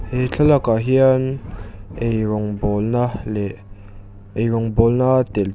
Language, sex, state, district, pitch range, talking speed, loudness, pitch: Mizo, male, Mizoram, Aizawl, 100-125 Hz, 120 wpm, -19 LUFS, 110 Hz